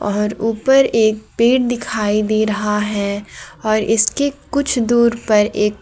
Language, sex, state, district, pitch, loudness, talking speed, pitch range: Hindi, female, Jharkhand, Garhwa, 215 Hz, -16 LUFS, 145 wpm, 210-235 Hz